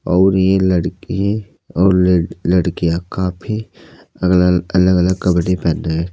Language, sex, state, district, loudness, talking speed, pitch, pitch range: Hindi, male, Uttar Pradesh, Saharanpur, -16 LUFS, 125 wpm, 90 Hz, 90-95 Hz